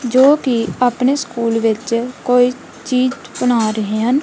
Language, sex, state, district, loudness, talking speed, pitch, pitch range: Punjabi, female, Punjab, Kapurthala, -16 LUFS, 140 wpm, 245 Hz, 230-255 Hz